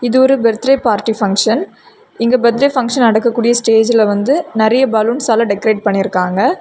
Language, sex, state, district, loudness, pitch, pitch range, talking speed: Tamil, female, Tamil Nadu, Kanyakumari, -13 LUFS, 230 Hz, 220-260 Hz, 155 wpm